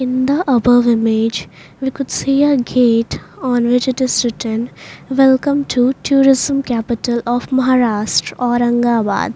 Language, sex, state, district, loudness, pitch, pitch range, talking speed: English, female, Maharashtra, Mumbai Suburban, -15 LUFS, 245 Hz, 235-265 Hz, 135 wpm